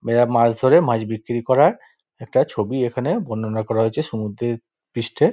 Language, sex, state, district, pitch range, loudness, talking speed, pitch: Bengali, male, West Bengal, Dakshin Dinajpur, 110-125 Hz, -20 LUFS, 170 wpm, 115 Hz